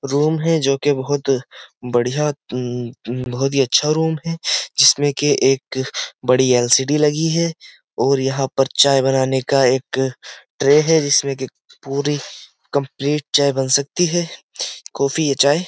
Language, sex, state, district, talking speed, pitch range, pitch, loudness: Hindi, male, Uttar Pradesh, Jyotiba Phule Nagar, 155 wpm, 130-150 Hz, 140 Hz, -18 LUFS